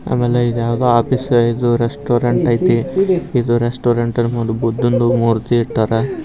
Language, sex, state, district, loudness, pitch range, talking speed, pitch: Kannada, male, Karnataka, Bijapur, -16 LUFS, 115-120 Hz, 125 wpm, 120 Hz